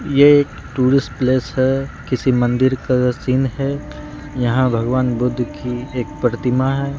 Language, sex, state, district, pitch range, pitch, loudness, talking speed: Hindi, male, Bihar, Katihar, 125-135 Hz, 130 Hz, -18 LUFS, 145 wpm